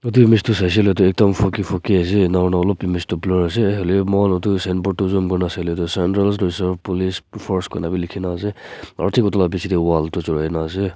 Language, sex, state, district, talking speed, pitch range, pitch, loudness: Nagamese, male, Nagaland, Kohima, 225 wpm, 90-100 Hz, 95 Hz, -18 LUFS